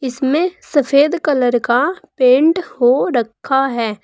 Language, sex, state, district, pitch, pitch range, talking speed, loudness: Hindi, female, Uttar Pradesh, Saharanpur, 270 Hz, 245-310 Hz, 120 wpm, -15 LUFS